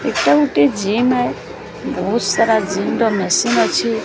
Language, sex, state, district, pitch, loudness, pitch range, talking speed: Odia, female, Odisha, Sambalpur, 205 Hz, -16 LUFS, 150-230 Hz, 150 wpm